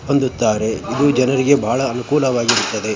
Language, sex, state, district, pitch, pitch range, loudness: Kannada, male, Karnataka, Bijapur, 130 Hz, 115-140 Hz, -17 LUFS